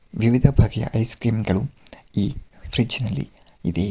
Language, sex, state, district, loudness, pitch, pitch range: Kannada, male, Karnataka, Mysore, -22 LUFS, 110 Hz, 105-115 Hz